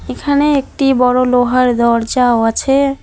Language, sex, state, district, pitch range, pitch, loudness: Bengali, female, West Bengal, Alipurduar, 245-275 Hz, 255 Hz, -13 LUFS